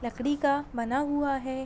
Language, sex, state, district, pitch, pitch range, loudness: Hindi, female, Jharkhand, Sahebganj, 275 Hz, 255-285 Hz, -29 LUFS